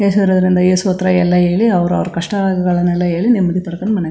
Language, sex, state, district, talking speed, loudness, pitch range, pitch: Kannada, female, Karnataka, Chamarajanagar, 190 wpm, -14 LUFS, 175-195 Hz, 185 Hz